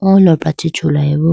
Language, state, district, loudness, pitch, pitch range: Idu Mishmi, Arunachal Pradesh, Lower Dibang Valley, -13 LUFS, 160 Hz, 155-170 Hz